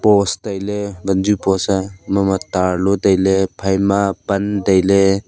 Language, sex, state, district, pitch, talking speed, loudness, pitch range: Wancho, male, Arunachal Pradesh, Longding, 95 Hz, 115 wpm, -17 LUFS, 95-100 Hz